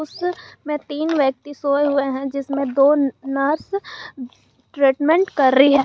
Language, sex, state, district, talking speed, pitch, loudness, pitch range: Hindi, male, Jharkhand, Garhwa, 135 wpm, 285 Hz, -19 LUFS, 275-305 Hz